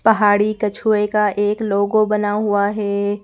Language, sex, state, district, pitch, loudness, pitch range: Hindi, female, Madhya Pradesh, Bhopal, 210 Hz, -17 LUFS, 205-215 Hz